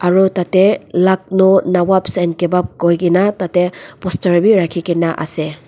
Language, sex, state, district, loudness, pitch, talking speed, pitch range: Nagamese, female, Nagaland, Dimapur, -14 LUFS, 180 Hz, 115 wpm, 175-190 Hz